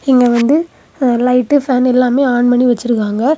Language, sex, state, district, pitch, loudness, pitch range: Tamil, female, Tamil Nadu, Kanyakumari, 250 Hz, -13 LUFS, 245-270 Hz